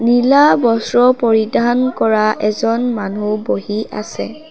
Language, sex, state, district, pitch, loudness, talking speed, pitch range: Assamese, female, Assam, Kamrup Metropolitan, 230 Hz, -15 LUFS, 105 wpm, 215-245 Hz